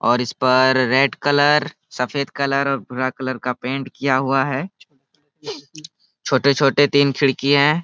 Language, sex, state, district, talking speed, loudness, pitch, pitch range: Hindi, male, Jharkhand, Sahebganj, 145 wpm, -18 LUFS, 135 Hz, 130-145 Hz